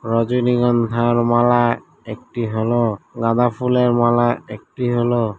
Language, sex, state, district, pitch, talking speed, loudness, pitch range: Bengali, male, West Bengal, Malda, 120 Hz, 100 wpm, -18 LUFS, 115-120 Hz